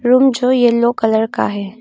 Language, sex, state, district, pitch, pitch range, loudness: Hindi, female, Arunachal Pradesh, Longding, 240 Hz, 225-250 Hz, -14 LUFS